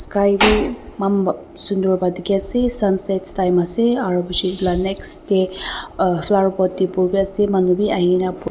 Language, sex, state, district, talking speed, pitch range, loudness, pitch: Nagamese, female, Nagaland, Dimapur, 195 wpm, 185-200 Hz, -18 LUFS, 190 Hz